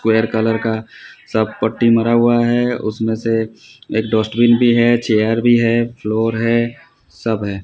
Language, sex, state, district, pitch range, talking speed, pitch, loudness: Hindi, male, Odisha, Sambalpur, 110-120 Hz, 165 wpm, 115 Hz, -16 LUFS